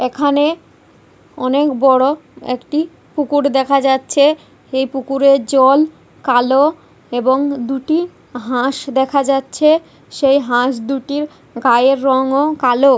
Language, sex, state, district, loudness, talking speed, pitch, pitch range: Bengali, female, West Bengal, Kolkata, -15 LUFS, 110 wpm, 275 Hz, 260-290 Hz